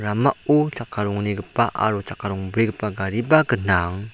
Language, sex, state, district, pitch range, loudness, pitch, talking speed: Garo, male, Meghalaya, South Garo Hills, 100-120 Hz, -21 LUFS, 105 Hz, 115 wpm